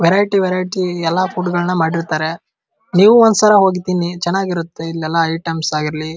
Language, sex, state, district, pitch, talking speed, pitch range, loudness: Kannada, male, Karnataka, Dharwad, 175 Hz, 145 wpm, 165-185 Hz, -15 LUFS